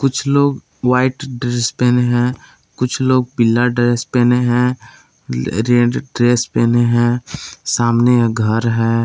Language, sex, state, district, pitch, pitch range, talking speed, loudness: Hindi, male, Jharkhand, Palamu, 120 Hz, 120-125 Hz, 125 wpm, -15 LUFS